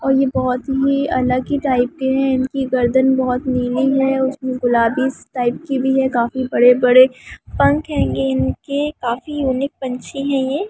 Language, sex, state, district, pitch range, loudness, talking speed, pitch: Hindi, female, West Bengal, Kolkata, 250-270 Hz, -17 LUFS, 170 wpm, 260 Hz